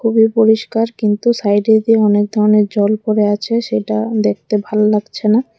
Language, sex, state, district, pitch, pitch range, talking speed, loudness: Bengali, female, Tripura, West Tripura, 215 Hz, 205-225 Hz, 140 wpm, -14 LUFS